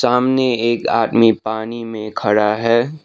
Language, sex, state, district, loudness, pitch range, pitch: Hindi, male, Sikkim, Gangtok, -17 LUFS, 110-120 Hz, 115 Hz